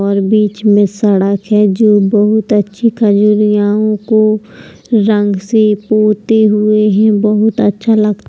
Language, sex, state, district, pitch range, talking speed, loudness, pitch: Hindi, female, Uttar Pradesh, Jalaun, 205-215 Hz, 125 wpm, -11 LUFS, 210 Hz